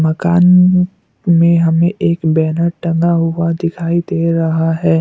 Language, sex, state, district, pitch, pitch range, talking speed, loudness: Hindi, male, Assam, Kamrup Metropolitan, 170 Hz, 165-170 Hz, 130 wpm, -13 LUFS